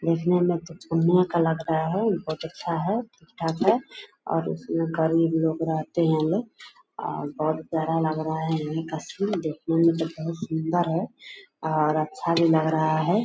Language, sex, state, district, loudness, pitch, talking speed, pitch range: Hindi, female, Bihar, Purnia, -25 LUFS, 165 Hz, 185 wpm, 160-175 Hz